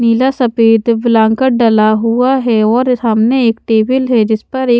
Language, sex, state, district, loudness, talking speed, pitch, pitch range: Hindi, female, Haryana, Charkhi Dadri, -11 LUFS, 175 wpm, 230 Hz, 225-250 Hz